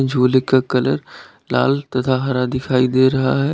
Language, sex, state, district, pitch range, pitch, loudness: Hindi, male, Uttar Pradesh, Lalitpur, 130-135 Hz, 130 Hz, -17 LUFS